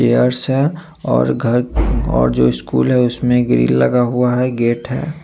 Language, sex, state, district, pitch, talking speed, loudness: Hindi, male, Chandigarh, Chandigarh, 120 Hz, 170 wpm, -16 LUFS